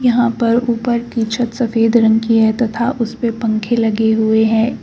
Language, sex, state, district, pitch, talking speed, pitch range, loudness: Hindi, female, Uttar Pradesh, Shamli, 230 Hz, 185 wpm, 225-240 Hz, -15 LUFS